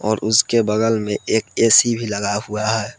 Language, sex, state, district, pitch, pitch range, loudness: Hindi, male, Jharkhand, Palamu, 110 Hz, 105-115 Hz, -17 LUFS